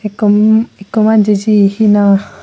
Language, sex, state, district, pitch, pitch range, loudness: Chakma, female, Tripura, Unakoti, 210 Hz, 205-215 Hz, -11 LUFS